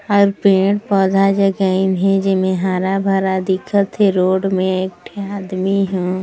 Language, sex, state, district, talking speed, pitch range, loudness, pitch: Hindi, female, Chhattisgarh, Sarguja, 155 wpm, 185-195 Hz, -16 LUFS, 195 Hz